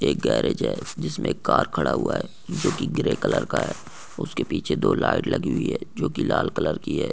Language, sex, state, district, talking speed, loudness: Hindi, male, Goa, North and South Goa, 235 wpm, -24 LUFS